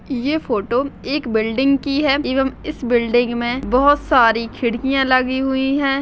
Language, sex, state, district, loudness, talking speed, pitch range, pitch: Hindi, female, Chhattisgarh, Jashpur, -18 LUFS, 160 wpm, 240-275 Hz, 265 Hz